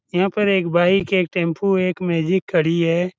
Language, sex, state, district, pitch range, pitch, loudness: Hindi, male, Bihar, Saran, 170-190 Hz, 180 Hz, -19 LUFS